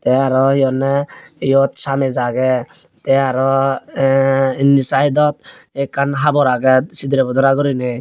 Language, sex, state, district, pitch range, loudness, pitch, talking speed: Chakma, male, Tripura, Unakoti, 130-140 Hz, -15 LUFS, 135 Hz, 125 wpm